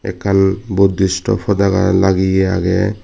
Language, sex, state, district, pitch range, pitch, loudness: Chakma, male, Tripura, Dhalai, 95-100 Hz, 95 Hz, -15 LUFS